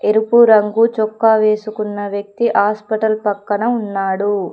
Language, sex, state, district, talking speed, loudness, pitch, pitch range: Telugu, female, Telangana, Komaram Bheem, 105 wpm, -15 LUFS, 215 Hz, 205-220 Hz